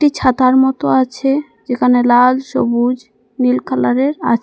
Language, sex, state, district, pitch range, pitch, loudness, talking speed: Bengali, female, Assam, Hailakandi, 240-265 Hz, 255 Hz, -14 LUFS, 120 wpm